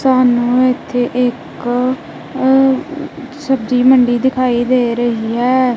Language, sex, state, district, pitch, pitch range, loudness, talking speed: Punjabi, female, Punjab, Kapurthala, 255 Hz, 245-265 Hz, -14 LUFS, 95 wpm